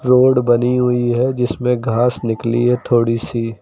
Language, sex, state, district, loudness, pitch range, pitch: Hindi, male, Uttar Pradesh, Lucknow, -16 LUFS, 115-125 Hz, 120 Hz